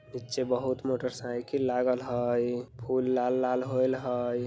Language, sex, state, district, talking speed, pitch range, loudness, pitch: Bajjika, male, Bihar, Vaishali, 120 wpm, 120-130 Hz, -30 LUFS, 125 Hz